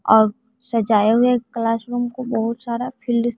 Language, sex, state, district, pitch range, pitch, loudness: Hindi, female, Bihar, West Champaran, 230-245 Hz, 235 Hz, -20 LUFS